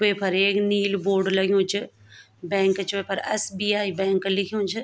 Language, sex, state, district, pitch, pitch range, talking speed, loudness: Garhwali, female, Uttarakhand, Tehri Garhwal, 195 Hz, 190-205 Hz, 160 wpm, -23 LUFS